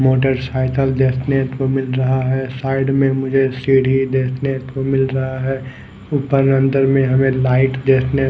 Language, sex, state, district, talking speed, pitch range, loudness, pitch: Hindi, male, Odisha, Khordha, 150 wpm, 130-135 Hz, -17 LUFS, 135 Hz